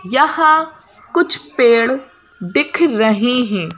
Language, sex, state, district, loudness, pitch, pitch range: Hindi, female, Madhya Pradesh, Bhopal, -14 LUFS, 245 Hz, 205-310 Hz